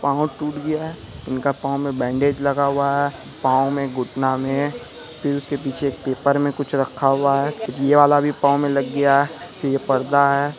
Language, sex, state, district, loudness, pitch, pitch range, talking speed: Hindi, male, Bihar, Araria, -20 LUFS, 140 Hz, 135-145 Hz, 205 wpm